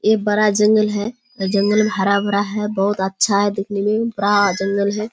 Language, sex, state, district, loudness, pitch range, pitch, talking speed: Hindi, female, Bihar, Kishanganj, -18 LUFS, 200-215 Hz, 205 Hz, 185 wpm